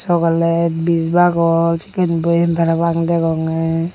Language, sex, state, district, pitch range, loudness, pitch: Chakma, female, Tripura, Unakoti, 165-170 Hz, -16 LUFS, 170 Hz